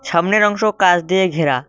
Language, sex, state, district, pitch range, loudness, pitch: Bengali, male, West Bengal, Cooch Behar, 170-205 Hz, -15 LUFS, 180 Hz